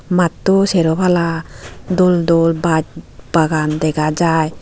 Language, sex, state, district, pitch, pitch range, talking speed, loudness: Chakma, female, Tripura, Unakoti, 165 Hz, 155-180 Hz, 115 wpm, -15 LUFS